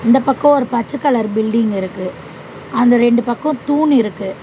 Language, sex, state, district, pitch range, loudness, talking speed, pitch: Tamil, female, Tamil Nadu, Chennai, 220-270 Hz, -15 LUFS, 160 wpm, 240 Hz